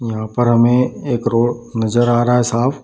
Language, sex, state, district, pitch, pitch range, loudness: Hindi, male, Bihar, Darbhanga, 120 Hz, 115-120 Hz, -16 LUFS